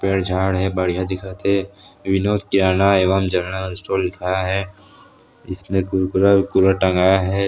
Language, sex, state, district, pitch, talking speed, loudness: Chhattisgarhi, male, Chhattisgarh, Sarguja, 95 Hz, 135 wpm, -19 LUFS